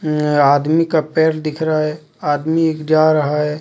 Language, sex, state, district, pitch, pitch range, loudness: Hindi, male, Jharkhand, Deoghar, 155 Hz, 150-160 Hz, -16 LUFS